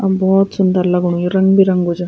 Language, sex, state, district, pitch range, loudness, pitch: Garhwali, female, Uttarakhand, Tehri Garhwal, 180-190 Hz, -14 LUFS, 190 Hz